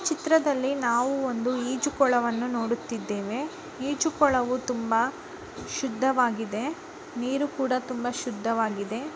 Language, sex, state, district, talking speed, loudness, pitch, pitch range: Kannada, female, Karnataka, Bijapur, 80 wpm, -27 LUFS, 255 Hz, 235-290 Hz